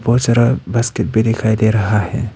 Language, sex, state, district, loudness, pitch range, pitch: Hindi, male, Arunachal Pradesh, Papum Pare, -15 LUFS, 110-120 Hz, 115 Hz